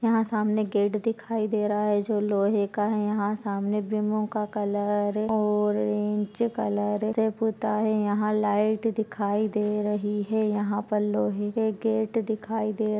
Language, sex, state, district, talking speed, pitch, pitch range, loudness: Hindi, female, Maharashtra, Chandrapur, 150 wpm, 210 Hz, 205-220 Hz, -26 LUFS